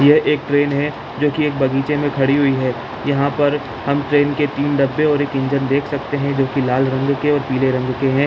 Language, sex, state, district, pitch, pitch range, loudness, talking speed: Hindi, male, Bihar, Jamui, 140 Hz, 135-145 Hz, -18 LUFS, 225 wpm